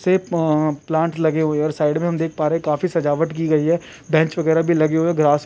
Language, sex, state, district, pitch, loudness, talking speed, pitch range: Hindi, male, Rajasthan, Churu, 160 Hz, -19 LUFS, 295 wpm, 155-165 Hz